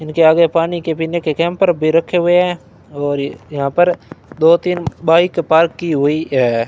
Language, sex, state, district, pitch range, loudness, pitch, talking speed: Hindi, male, Rajasthan, Bikaner, 145-170 Hz, -15 LUFS, 165 Hz, 195 wpm